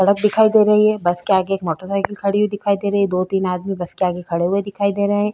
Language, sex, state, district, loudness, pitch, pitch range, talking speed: Hindi, female, Uttar Pradesh, Jalaun, -18 LUFS, 200 Hz, 185-205 Hz, 315 wpm